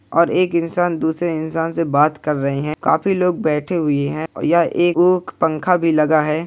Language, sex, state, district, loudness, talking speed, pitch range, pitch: Hindi, male, Bihar, Purnia, -18 LUFS, 185 wpm, 155-175 Hz, 165 Hz